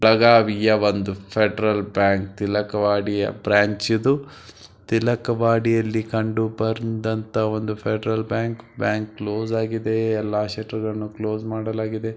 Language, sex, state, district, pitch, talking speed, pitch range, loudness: Kannada, male, Karnataka, Belgaum, 110 Hz, 160 wpm, 105-110 Hz, -22 LUFS